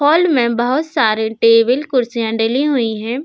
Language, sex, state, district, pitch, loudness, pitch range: Hindi, female, Uttar Pradesh, Hamirpur, 240 Hz, -15 LUFS, 225-280 Hz